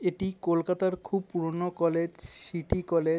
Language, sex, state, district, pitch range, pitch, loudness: Bengali, male, West Bengal, Kolkata, 165-185 Hz, 170 Hz, -30 LUFS